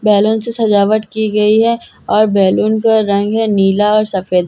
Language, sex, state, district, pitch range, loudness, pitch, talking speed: Hindi, female, Bihar, Katihar, 200-220 Hz, -13 LUFS, 215 Hz, 215 wpm